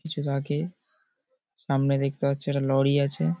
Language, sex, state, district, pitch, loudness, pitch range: Bengali, male, West Bengal, Paschim Medinipur, 140 Hz, -26 LUFS, 140-165 Hz